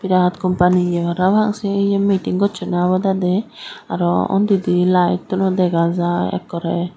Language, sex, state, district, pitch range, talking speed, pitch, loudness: Chakma, female, Tripura, Dhalai, 175-195 Hz, 145 wpm, 180 Hz, -17 LUFS